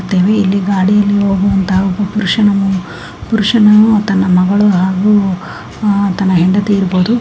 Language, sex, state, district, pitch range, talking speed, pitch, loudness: Kannada, female, Karnataka, Gulbarga, 190-205 Hz, 110 wpm, 195 Hz, -12 LUFS